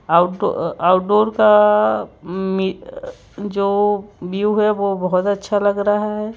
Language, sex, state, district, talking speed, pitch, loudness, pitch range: Hindi, male, Madhya Pradesh, Bhopal, 115 wpm, 205 Hz, -17 LUFS, 185-210 Hz